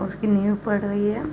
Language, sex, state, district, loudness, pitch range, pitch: Hindi, female, Uttar Pradesh, Jalaun, -23 LUFS, 205-210 Hz, 205 Hz